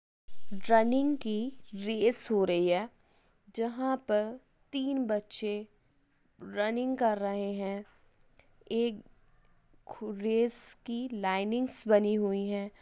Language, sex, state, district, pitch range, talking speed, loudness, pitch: Hindi, female, Uttar Pradesh, Jyotiba Phule Nagar, 205-235 Hz, 105 wpm, -31 LUFS, 215 Hz